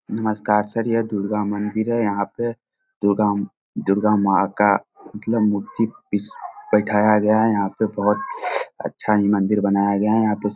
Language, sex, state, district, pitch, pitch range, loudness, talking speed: Hindi, male, Bihar, Samastipur, 105 Hz, 100-110 Hz, -20 LUFS, 175 wpm